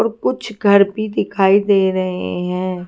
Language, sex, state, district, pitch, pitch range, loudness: Hindi, female, Haryana, Jhajjar, 195 Hz, 180-205 Hz, -16 LUFS